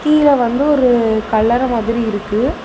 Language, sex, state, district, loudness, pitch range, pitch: Tamil, female, Tamil Nadu, Nilgiris, -14 LUFS, 220-275 Hz, 235 Hz